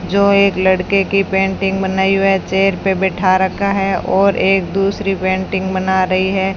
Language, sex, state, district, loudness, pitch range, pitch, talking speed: Hindi, female, Rajasthan, Bikaner, -15 LUFS, 190-195 Hz, 190 Hz, 185 wpm